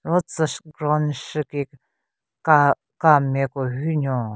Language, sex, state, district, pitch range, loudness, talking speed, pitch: Rengma, female, Nagaland, Kohima, 135-155 Hz, -21 LUFS, 150 wpm, 145 Hz